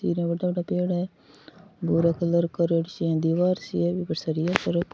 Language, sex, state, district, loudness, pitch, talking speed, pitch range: Rajasthani, female, Rajasthan, Churu, -25 LUFS, 170 Hz, 180 wpm, 170-180 Hz